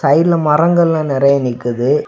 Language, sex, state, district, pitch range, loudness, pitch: Tamil, male, Tamil Nadu, Kanyakumari, 135-170 Hz, -13 LUFS, 150 Hz